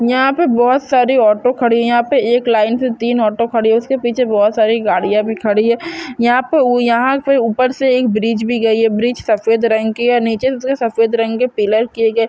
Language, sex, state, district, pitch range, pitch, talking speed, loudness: Hindi, female, Maharashtra, Pune, 225-250 Hz, 235 Hz, 245 wpm, -14 LUFS